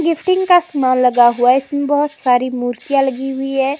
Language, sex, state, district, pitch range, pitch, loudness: Hindi, female, Himachal Pradesh, Shimla, 255-290 Hz, 270 Hz, -15 LUFS